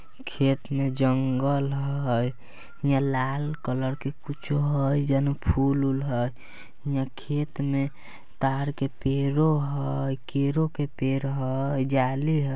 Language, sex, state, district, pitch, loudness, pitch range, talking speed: Bajjika, male, Bihar, Vaishali, 135 Hz, -26 LUFS, 135-140 Hz, 130 wpm